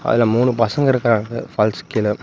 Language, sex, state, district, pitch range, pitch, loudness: Tamil, male, Tamil Nadu, Namakkal, 110-120 Hz, 115 Hz, -18 LUFS